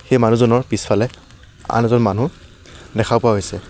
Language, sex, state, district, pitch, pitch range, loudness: Assamese, male, Assam, Sonitpur, 115 Hz, 105-120 Hz, -17 LUFS